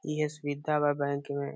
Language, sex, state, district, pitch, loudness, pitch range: Bhojpuri, male, Bihar, Saran, 145 Hz, -31 LUFS, 140-150 Hz